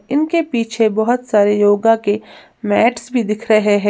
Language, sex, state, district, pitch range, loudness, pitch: Hindi, female, Uttar Pradesh, Lalitpur, 205-240 Hz, -15 LUFS, 220 Hz